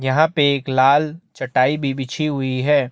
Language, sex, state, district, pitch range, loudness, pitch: Hindi, male, Chhattisgarh, Bastar, 130-150 Hz, -18 LUFS, 140 Hz